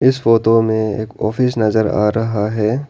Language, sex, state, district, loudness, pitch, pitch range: Hindi, male, Arunachal Pradesh, Lower Dibang Valley, -16 LUFS, 110 Hz, 110-115 Hz